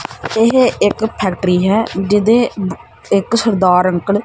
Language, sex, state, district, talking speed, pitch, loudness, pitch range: Punjabi, male, Punjab, Kapurthala, 140 wpm, 205 Hz, -14 LUFS, 185-225 Hz